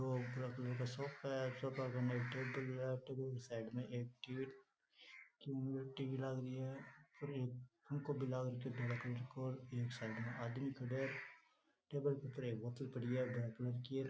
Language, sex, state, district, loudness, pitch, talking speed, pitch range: Rajasthani, male, Rajasthan, Nagaur, -45 LUFS, 130 Hz, 175 wpm, 125-135 Hz